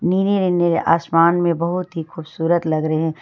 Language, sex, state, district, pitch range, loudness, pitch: Hindi, female, Jharkhand, Ranchi, 160-175 Hz, -18 LUFS, 170 Hz